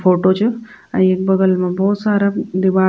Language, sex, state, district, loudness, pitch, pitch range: Garhwali, female, Uttarakhand, Tehri Garhwal, -16 LUFS, 190 Hz, 185-205 Hz